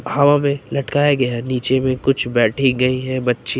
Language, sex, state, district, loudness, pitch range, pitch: Hindi, male, Uttar Pradesh, Lucknow, -18 LUFS, 125-140 Hz, 130 Hz